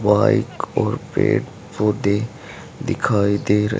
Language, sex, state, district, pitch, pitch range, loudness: Hindi, male, Haryana, Charkhi Dadri, 105 Hz, 100-115 Hz, -20 LUFS